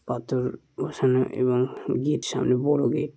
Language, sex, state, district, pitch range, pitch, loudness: Bengali, male, West Bengal, Malda, 125-145 Hz, 130 Hz, -25 LUFS